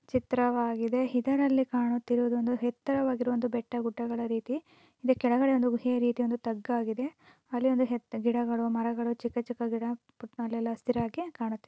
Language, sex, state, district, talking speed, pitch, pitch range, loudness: Kannada, female, Karnataka, Belgaum, 120 wpm, 240 Hz, 235-250 Hz, -30 LUFS